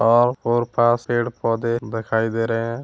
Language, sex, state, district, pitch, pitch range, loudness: Hindi, male, Uttar Pradesh, Hamirpur, 115 Hz, 115-120 Hz, -21 LUFS